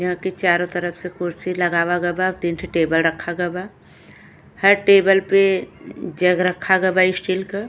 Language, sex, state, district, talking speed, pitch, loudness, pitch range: Bhojpuri, female, Uttar Pradesh, Gorakhpur, 170 wpm, 180 Hz, -19 LUFS, 175-190 Hz